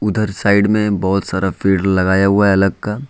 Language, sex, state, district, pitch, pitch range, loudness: Hindi, male, Jharkhand, Ranchi, 100 Hz, 95-105 Hz, -15 LUFS